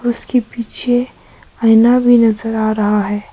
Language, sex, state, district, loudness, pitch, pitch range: Hindi, female, Arunachal Pradesh, Papum Pare, -13 LUFS, 230 Hz, 215-245 Hz